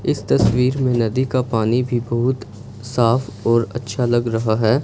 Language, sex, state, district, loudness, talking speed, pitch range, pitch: Hindi, male, Punjab, Fazilka, -19 LUFS, 175 wpm, 115-125 Hz, 120 Hz